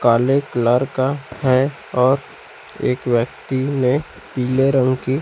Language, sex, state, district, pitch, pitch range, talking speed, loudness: Hindi, male, Chhattisgarh, Raipur, 130 Hz, 125-135 Hz, 125 wpm, -19 LUFS